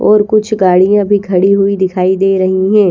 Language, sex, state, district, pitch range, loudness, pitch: Hindi, female, Haryana, Rohtak, 185-205 Hz, -11 LUFS, 195 Hz